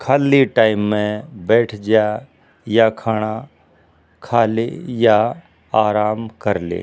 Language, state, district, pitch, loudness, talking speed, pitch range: Haryanvi, Haryana, Rohtak, 110 Hz, -17 LUFS, 115 wpm, 105-115 Hz